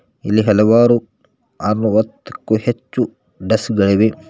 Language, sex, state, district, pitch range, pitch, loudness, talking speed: Kannada, male, Karnataka, Koppal, 105-115 Hz, 110 Hz, -16 LUFS, 100 wpm